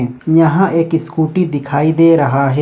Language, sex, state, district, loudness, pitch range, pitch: Hindi, male, Jharkhand, Ranchi, -13 LUFS, 145-165 Hz, 160 Hz